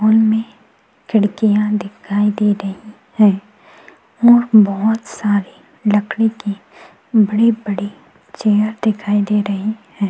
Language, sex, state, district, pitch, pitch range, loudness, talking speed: Hindi, female, Goa, North and South Goa, 210 Hz, 205-220 Hz, -16 LUFS, 100 wpm